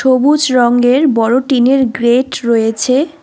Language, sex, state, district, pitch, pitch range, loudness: Bengali, female, West Bengal, Alipurduar, 255 Hz, 240-270 Hz, -12 LUFS